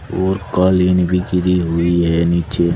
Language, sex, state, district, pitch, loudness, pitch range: Hindi, male, Uttar Pradesh, Saharanpur, 90 Hz, -16 LUFS, 85-90 Hz